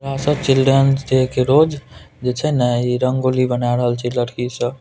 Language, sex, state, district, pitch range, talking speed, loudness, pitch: Maithili, male, Bihar, Purnia, 125-135 Hz, 185 wpm, -17 LUFS, 130 Hz